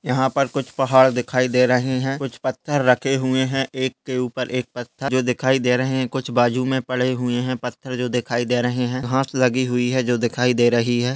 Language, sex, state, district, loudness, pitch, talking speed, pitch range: Hindi, male, Uttarakhand, Uttarkashi, -20 LUFS, 125 Hz, 235 wpm, 125-130 Hz